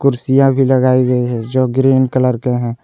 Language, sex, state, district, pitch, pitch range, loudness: Hindi, male, Jharkhand, Garhwa, 130 Hz, 125-130 Hz, -14 LUFS